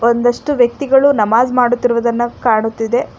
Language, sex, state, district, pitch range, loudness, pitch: Kannada, female, Karnataka, Bangalore, 235-250 Hz, -14 LUFS, 240 Hz